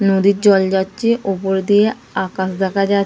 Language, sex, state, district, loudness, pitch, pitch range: Bengali, female, West Bengal, Dakshin Dinajpur, -16 LUFS, 195 Hz, 190-205 Hz